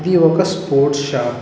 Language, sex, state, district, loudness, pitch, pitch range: Telugu, male, Telangana, Mahabubabad, -16 LUFS, 145 Hz, 140-180 Hz